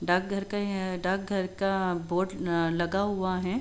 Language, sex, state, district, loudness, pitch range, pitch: Hindi, female, Uttar Pradesh, Jalaun, -29 LUFS, 180-195 Hz, 185 Hz